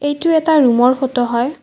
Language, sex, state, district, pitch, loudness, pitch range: Assamese, female, Assam, Kamrup Metropolitan, 265 Hz, -14 LUFS, 245-310 Hz